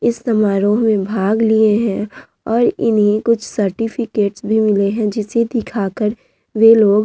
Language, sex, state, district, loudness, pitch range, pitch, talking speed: Hindi, female, Bihar, Vaishali, -16 LUFS, 210-225 Hz, 215 Hz, 135 wpm